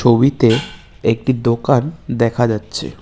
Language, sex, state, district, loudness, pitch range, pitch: Bengali, male, West Bengal, Cooch Behar, -16 LUFS, 115-130 Hz, 120 Hz